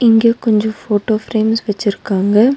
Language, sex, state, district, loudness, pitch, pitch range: Tamil, female, Tamil Nadu, Nilgiris, -15 LUFS, 220 Hz, 205-225 Hz